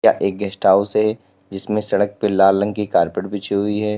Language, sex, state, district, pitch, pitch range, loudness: Hindi, male, Uttar Pradesh, Lalitpur, 100 Hz, 95-105 Hz, -18 LUFS